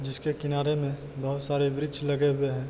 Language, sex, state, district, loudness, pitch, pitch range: Hindi, male, Bihar, Kishanganj, -28 LUFS, 145 Hz, 140-145 Hz